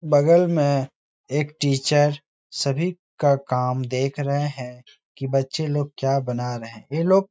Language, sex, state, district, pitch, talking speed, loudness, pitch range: Hindi, male, Uttar Pradesh, Etah, 140 Hz, 165 wpm, -22 LUFS, 130-150 Hz